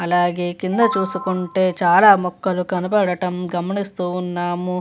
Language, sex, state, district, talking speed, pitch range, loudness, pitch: Telugu, female, Andhra Pradesh, Visakhapatnam, 100 wpm, 175-185 Hz, -19 LUFS, 180 Hz